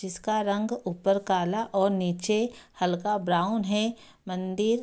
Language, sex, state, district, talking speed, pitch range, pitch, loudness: Hindi, female, Bihar, Darbhanga, 135 wpm, 185-215 Hz, 200 Hz, -27 LUFS